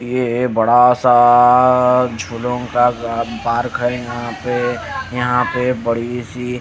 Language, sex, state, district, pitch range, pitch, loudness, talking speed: Hindi, male, Haryana, Jhajjar, 120-125 Hz, 120 Hz, -16 LUFS, 90 wpm